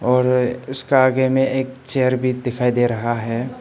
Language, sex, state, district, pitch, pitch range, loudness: Hindi, male, Arunachal Pradesh, Papum Pare, 125 Hz, 125-130 Hz, -19 LUFS